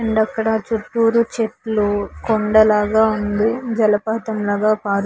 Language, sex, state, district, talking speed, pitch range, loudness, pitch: Telugu, female, Andhra Pradesh, Visakhapatnam, 130 wpm, 210-225 Hz, -18 LUFS, 220 Hz